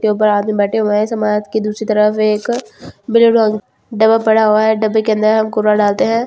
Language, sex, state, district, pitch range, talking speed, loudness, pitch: Hindi, female, Delhi, New Delhi, 210-220 Hz, 220 wpm, -14 LUFS, 215 Hz